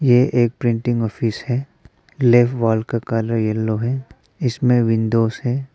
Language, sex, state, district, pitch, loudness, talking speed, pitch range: Hindi, male, Arunachal Pradesh, Papum Pare, 120 Hz, -19 LUFS, 145 wpm, 115-125 Hz